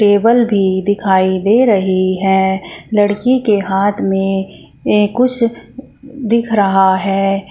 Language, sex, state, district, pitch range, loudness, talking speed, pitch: Hindi, female, Uttar Pradesh, Shamli, 190-230 Hz, -14 LUFS, 110 wpm, 205 Hz